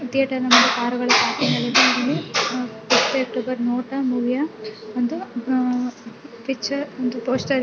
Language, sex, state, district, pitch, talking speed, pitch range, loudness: Kannada, female, Karnataka, Belgaum, 250 Hz, 125 wpm, 240-260 Hz, -20 LUFS